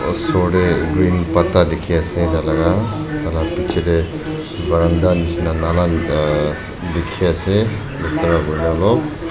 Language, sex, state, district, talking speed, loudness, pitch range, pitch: Nagamese, male, Nagaland, Dimapur, 95 wpm, -17 LUFS, 80-95 Hz, 85 Hz